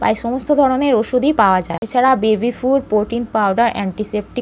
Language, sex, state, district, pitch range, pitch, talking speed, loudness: Bengali, female, West Bengal, North 24 Parganas, 215-255 Hz, 235 Hz, 175 wpm, -16 LUFS